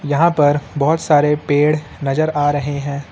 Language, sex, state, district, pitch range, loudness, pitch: Hindi, male, Uttar Pradesh, Lucknow, 145-155 Hz, -16 LUFS, 145 Hz